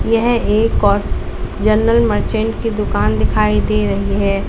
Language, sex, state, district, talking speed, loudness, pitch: Hindi, female, Uttar Pradesh, Lalitpur, 145 wpm, -16 LUFS, 155 Hz